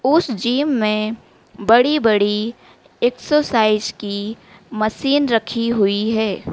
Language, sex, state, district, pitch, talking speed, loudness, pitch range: Hindi, female, Madhya Pradesh, Dhar, 225 Hz, 90 wpm, -18 LUFS, 210-250 Hz